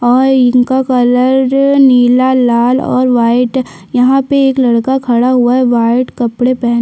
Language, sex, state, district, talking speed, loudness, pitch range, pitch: Hindi, female, Chhattisgarh, Sukma, 150 wpm, -10 LUFS, 245-260 Hz, 250 Hz